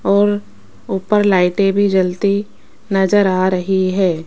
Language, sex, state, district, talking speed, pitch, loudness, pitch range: Hindi, female, Rajasthan, Jaipur, 125 wpm, 195 Hz, -16 LUFS, 185-200 Hz